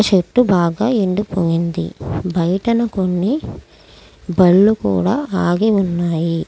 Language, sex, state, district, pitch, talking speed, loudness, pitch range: Telugu, female, Andhra Pradesh, Krishna, 185 Hz, 85 wpm, -16 LUFS, 175-215 Hz